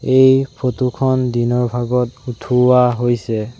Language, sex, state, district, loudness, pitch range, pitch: Assamese, male, Assam, Sonitpur, -16 LUFS, 120-130 Hz, 125 Hz